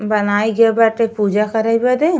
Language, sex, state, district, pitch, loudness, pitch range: Bhojpuri, female, Uttar Pradesh, Ghazipur, 225 Hz, -15 LUFS, 210-230 Hz